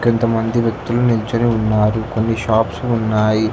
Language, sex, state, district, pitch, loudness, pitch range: Telugu, male, Telangana, Hyderabad, 115 Hz, -17 LUFS, 110-115 Hz